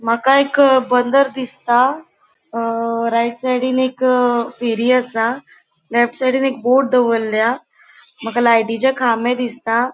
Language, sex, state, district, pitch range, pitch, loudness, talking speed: Konkani, female, Goa, North and South Goa, 230-260 Hz, 245 Hz, -16 LUFS, 115 wpm